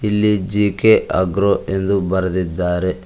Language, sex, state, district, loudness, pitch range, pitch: Kannada, male, Karnataka, Koppal, -17 LUFS, 95-105 Hz, 95 Hz